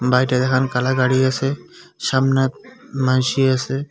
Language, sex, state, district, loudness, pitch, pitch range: Bengali, male, West Bengal, Cooch Behar, -19 LUFS, 130 Hz, 130-135 Hz